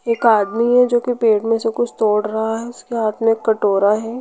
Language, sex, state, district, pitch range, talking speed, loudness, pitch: Hindi, female, Chhattisgarh, Rajnandgaon, 220-240 Hz, 255 wpm, -17 LUFS, 225 Hz